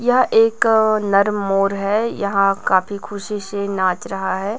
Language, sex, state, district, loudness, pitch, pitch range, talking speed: Hindi, female, Chhattisgarh, Raipur, -18 LUFS, 200 Hz, 195-215 Hz, 155 wpm